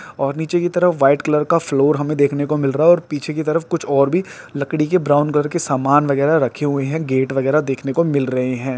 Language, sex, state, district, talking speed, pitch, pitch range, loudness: Hindi, male, Uttarakhand, Tehri Garhwal, 260 wpm, 145 Hz, 140-160 Hz, -17 LUFS